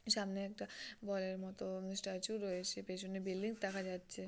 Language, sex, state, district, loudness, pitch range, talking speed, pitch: Bengali, female, West Bengal, Purulia, -43 LUFS, 190-200 Hz, 170 wpm, 190 Hz